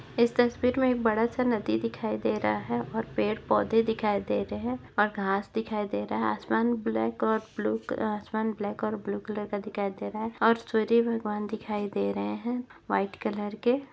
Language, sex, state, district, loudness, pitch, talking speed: Hindi, female, Chhattisgarh, Bastar, -29 LUFS, 210 Hz, 205 wpm